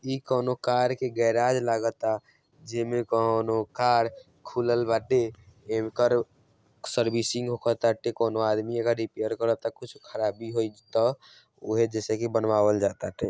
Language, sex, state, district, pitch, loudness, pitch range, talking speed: Bhojpuri, male, Bihar, Saran, 115 Hz, -27 LUFS, 110-120 Hz, 135 wpm